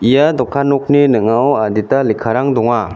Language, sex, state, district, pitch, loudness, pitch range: Garo, male, Meghalaya, West Garo Hills, 130 Hz, -13 LUFS, 110-140 Hz